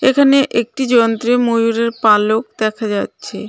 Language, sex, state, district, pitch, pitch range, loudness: Bengali, female, West Bengal, Cooch Behar, 230 Hz, 220-245 Hz, -15 LUFS